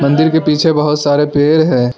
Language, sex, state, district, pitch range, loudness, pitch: Hindi, male, Arunachal Pradesh, Lower Dibang Valley, 145-160 Hz, -12 LUFS, 150 Hz